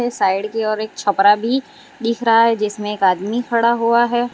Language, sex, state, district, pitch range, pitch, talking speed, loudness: Hindi, female, Gujarat, Valsad, 210-235 Hz, 230 Hz, 235 wpm, -17 LUFS